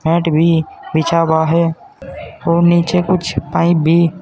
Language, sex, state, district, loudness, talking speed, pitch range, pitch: Hindi, male, Uttar Pradesh, Saharanpur, -14 LUFS, 140 wpm, 160-170 Hz, 170 Hz